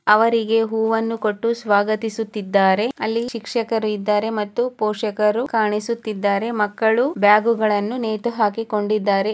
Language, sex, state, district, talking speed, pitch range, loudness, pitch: Kannada, female, Karnataka, Chamarajanagar, 90 wpm, 210-225 Hz, -20 LUFS, 215 Hz